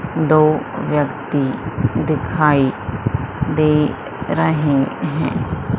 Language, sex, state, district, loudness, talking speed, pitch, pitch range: Hindi, female, Madhya Pradesh, Umaria, -18 LUFS, 60 wpm, 145 Hz, 125-150 Hz